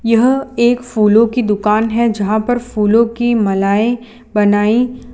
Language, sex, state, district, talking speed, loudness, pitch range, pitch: Hindi, female, Gujarat, Valsad, 150 wpm, -14 LUFS, 210-240 Hz, 230 Hz